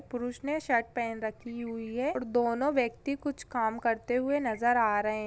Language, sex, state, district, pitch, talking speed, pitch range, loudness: Hindi, female, Maharashtra, Sindhudurg, 240 Hz, 205 wpm, 230-260 Hz, -31 LUFS